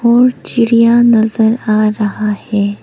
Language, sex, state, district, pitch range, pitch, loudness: Hindi, female, Arunachal Pradesh, Papum Pare, 210-235 Hz, 220 Hz, -12 LUFS